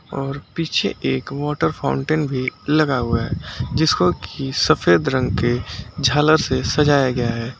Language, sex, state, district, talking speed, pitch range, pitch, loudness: Hindi, male, Uttar Pradesh, Lucknow, 150 wpm, 115-145 Hz, 130 Hz, -19 LUFS